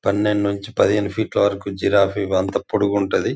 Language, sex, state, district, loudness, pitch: Telugu, male, Telangana, Nalgonda, -20 LUFS, 100 Hz